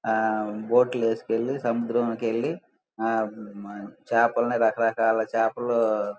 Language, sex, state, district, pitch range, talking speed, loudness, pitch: Telugu, male, Andhra Pradesh, Guntur, 110-115 Hz, 95 wpm, -25 LUFS, 115 Hz